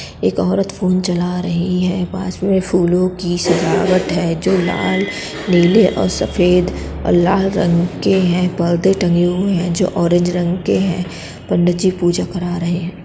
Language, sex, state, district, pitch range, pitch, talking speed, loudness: Bundeli, female, Uttar Pradesh, Budaun, 175-185 Hz, 180 Hz, 170 wpm, -16 LUFS